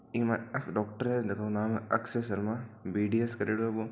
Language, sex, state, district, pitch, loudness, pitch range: Marwari, male, Rajasthan, Churu, 110 Hz, -32 LUFS, 105-120 Hz